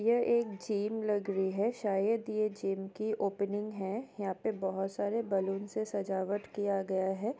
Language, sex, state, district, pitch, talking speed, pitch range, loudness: Hindi, female, Bihar, Saran, 205 Hz, 180 wpm, 195-220 Hz, -34 LUFS